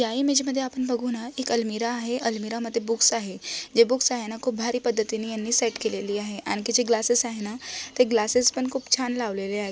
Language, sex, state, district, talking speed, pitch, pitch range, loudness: Marathi, female, Maharashtra, Solapur, 205 wpm, 235 Hz, 225-250 Hz, -25 LUFS